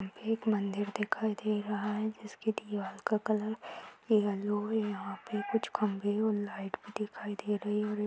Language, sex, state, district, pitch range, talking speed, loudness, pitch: Hindi, female, Uttar Pradesh, Deoria, 205-215 Hz, 185 wpm, -34 LUFS, 210 Hz